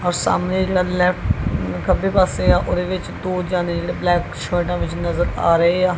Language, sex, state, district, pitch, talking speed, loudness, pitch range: Punjabi, female, Punjab, Kapurthala, 180 Hz, 190 wpm, -19 LUFS, 175-185 Hz